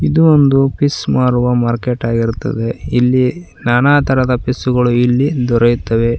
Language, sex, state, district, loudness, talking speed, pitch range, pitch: Kannada, female, Karnataka, Koppal, -14 LUFS, 125 wpm, 120-135 Hz, 125 Hz